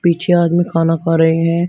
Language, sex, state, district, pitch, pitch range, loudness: Hindi, male, Uttar Pradesh, Shamli, 165 Hz, 165-175 Hz, -14 LUFS